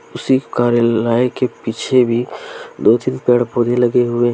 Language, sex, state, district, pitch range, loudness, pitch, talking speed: Hindi, male, Jharkhand, Deoghar, 120-125 Hz, -16 LUFS, 120 Hz, 125 wpm